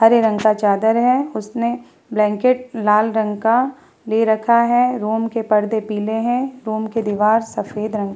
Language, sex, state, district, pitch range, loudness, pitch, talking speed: Hindi, female, Bihar, Vaishali, 215-235 Hz, -18 LUFS, 220 Hz, 175 wpm